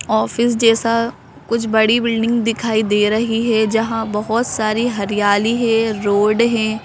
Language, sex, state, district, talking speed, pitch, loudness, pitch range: Hindi, female, Madhya Pradesh, Bhopal, 140 wpm, 225 Hz, -16 LUFS, 215-230 Hz